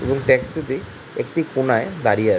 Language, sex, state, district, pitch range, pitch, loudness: Bengali, male, West Bengal, Kolkata, 130-160 Hz, 135 Hz, -20 LUFS